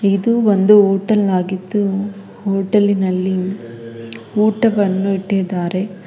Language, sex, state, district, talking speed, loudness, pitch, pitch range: Kannada, female, Karnataka, Bangalore, 80 wpm, -16 LUFS, 195 Hz, 185-205 Hz